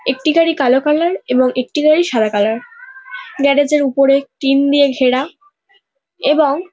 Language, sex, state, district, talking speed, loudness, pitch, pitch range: Bengali, female, West Bengal, North 24 Parganas, 145 wpm, -14 LUFS, 285 Hz, 265-330 Hz